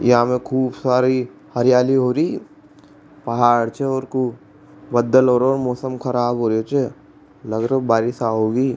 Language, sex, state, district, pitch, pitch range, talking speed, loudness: Rajasthani, male, Rajasthan, Churu, 125 Hz, 120-130 Hz, 145 wpm, -19 LUFS